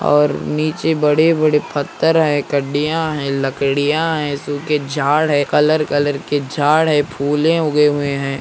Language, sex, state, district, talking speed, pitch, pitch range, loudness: Hindi, male, Andhra Pradesh, Anantapur, 150 wpm, 150 Hz, 145-155 Hz, -16 LUFS